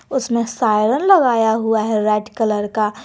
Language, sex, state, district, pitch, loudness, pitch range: Hindi, female, Jharkhand, Garhwa, 220 Hz, -17 LUFS, 215-235 Hz